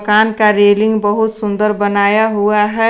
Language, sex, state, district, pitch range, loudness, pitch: Hindi, female, Jharkhand, Garhwa, 205-220 Hz, -13 LUFS, 210 Hz